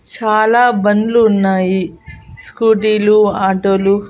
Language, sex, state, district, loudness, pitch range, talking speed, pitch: Telugu, female, Andhra Pradesh, Annamaya, -13 LUFS, 195-220 Hz, 100 wpm, 210 Hz